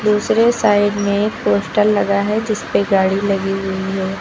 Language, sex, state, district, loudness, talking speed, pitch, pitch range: Hindi, female, Uttar Pradesh, Lucknow, -16 LUFS, 155 wpm, 200 Hz, 195-210 Hz